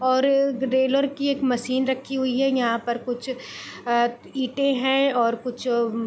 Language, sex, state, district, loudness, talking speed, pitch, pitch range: Hindi, female, Bihar, Purnia, -23 LUFS, 175 wpm, 260 Hz, 240-270 Hz